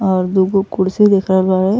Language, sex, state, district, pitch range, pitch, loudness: Bhojpuri, female, Uttar Pradesh, Ghazipur, 185-195 Hz, 190 Hz, -14 LUFS